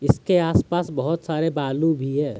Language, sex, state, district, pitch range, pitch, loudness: Hindi, male, Jharkhand, Deoghar, 140-165 Hz, 155 Hz, -22 LUFS